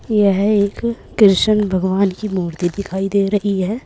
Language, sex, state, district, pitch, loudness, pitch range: Hindi, female, Uttar Pradesh, Saharanpur, 200 Hz, -17 LUFS, 190-210 Hz